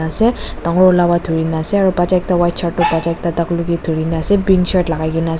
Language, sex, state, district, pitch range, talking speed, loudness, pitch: Nagamese, female, Nagaland, Dimapur, 165-180 Hz, 265 wpm, -15 LUFS, 170 Hz